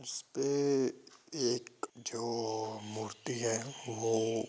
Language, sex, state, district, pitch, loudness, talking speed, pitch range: Hindi, male, Bihar, Begusarai, 115 Hz, -36 LUFS, 80 wpm, 110-125 Hz